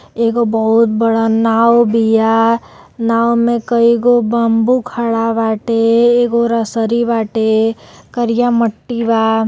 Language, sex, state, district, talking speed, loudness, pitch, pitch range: Bhojpuri, female, Uttar Pradesh, Deoria, 110 wpm, -13 LUFS, 230 Hz, 225-235 Hz